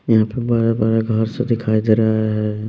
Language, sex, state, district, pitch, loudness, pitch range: Hindi, male, Bihar, West Champaran, 110 Hz, -18 LUFS, 110-115 Hz